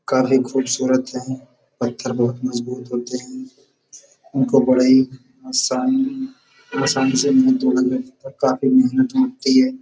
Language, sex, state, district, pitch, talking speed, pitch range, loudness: Hindi, male, Uttar Pradesh, Budaun, 130 Hz, 160 wpm, 130-140 Hz, -19 LUFS